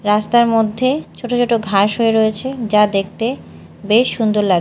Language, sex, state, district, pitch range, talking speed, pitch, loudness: Bengali, female, Odisha, Malkangiri, 210-240 Hz, 155 wpm, 225 Hz, -16 LUFS